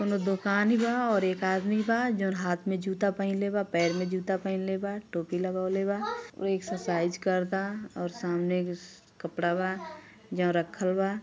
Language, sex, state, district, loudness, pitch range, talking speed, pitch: Bhojpuri, female, Uttar Pradesh, Gorakhpur, -29 LUFS, 180-200 Hz, 170 wpm, 190 Hz